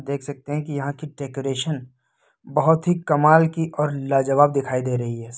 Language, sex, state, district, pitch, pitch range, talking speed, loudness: Hindi, male, Uttar Pradesh, Lucknow, 140 Hz, 135-150 Hz, 190 wpm, -21 LUFS